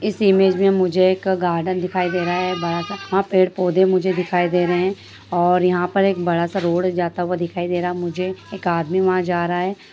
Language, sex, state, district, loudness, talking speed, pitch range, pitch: Hindi, female, Bihar, Jahanabad, -19 LUFS, 230 wpm, 175-190 Hz, 180 Hz